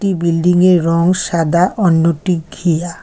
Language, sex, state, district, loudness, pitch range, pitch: Bengali, female, West Bengal, Alipurduar, -14 LUFS, 165-180 Hz, 175 Hz